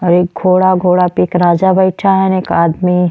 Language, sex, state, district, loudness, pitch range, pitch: Bhojpuri, female, Uttar Pradesh, Deoria, -12 LUFS, 175-185 Hz, 180 Hz